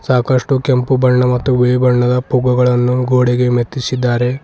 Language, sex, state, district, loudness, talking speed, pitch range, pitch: Kannada, male, Karnataka, Bidar, -14 LUFS, 110 wpm, 125-130 Hz, 125 Hz